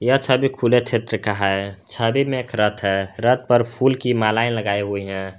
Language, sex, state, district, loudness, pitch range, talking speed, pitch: Hindi, male, Jharkhand, Garhwa, -20 LUFS, 100-125 Hz, 210 wpm, 115 Hz